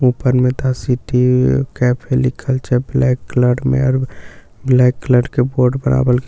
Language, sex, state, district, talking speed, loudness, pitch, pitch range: Maithili, male, Bihar, Katihar, 155 wpm, -15 LUFS, 125 Hz, 125-130 Hz